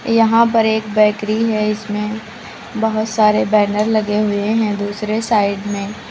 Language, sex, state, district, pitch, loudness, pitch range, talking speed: Hindi, female, Uttar Pradesh, Lucknow, 215 Hz, -16 LUFS, 210-220 Hz, 145 wpm